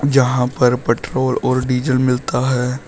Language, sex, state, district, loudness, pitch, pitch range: Hindi, male, Uttar Pradesh, Shamli, -17 LUFS, 130 Hz, 125-130 Hz